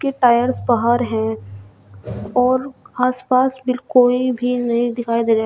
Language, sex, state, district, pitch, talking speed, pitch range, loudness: Hindi, female, Uttar Pradesh, Shamli, 245 Hz, 145 wpm, 225-255 Hz, -18 LUFS